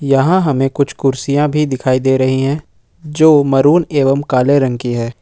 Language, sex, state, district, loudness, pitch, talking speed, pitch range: Hindi, male, Jharkhand, Ranchi, -13 LUFS, 135 Hz, 185 wpm, 130-150 Hz